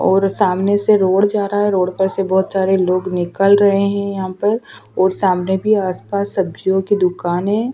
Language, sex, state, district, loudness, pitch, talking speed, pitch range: Hindi, female, Delhi, New Delhi, -16 LUFS, 195 Hz, 200 wpm, 185-200 Hz